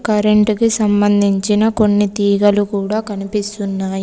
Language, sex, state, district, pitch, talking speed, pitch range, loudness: Telugu, female, Telangana, Komaram Bheem, 205 Hz, 105 wpm, 200-215 Hz, -15 LUFS